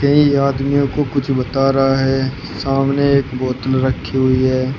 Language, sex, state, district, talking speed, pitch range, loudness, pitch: Hindi, male, Uttar Pradesh, Shamli, 150 wpm, 130-140 Hz, -16 LUFS, 135 Hz